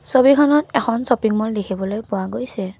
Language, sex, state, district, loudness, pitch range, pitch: Assamese, female, Assam, Kamrup Metropolitan, -18 LUFS, 200-260 Hz, 220 Hz